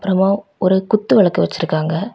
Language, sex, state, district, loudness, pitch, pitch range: Tamil, female, Tamil Nadu, Kanyakumari, -16 LUFS, 190 Hz, 175-205 Hz